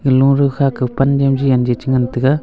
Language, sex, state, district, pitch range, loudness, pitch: Wancho, male, Arunachal Pradesh, Longding, 130-140 Hz, -15 LUFS, 135 Hz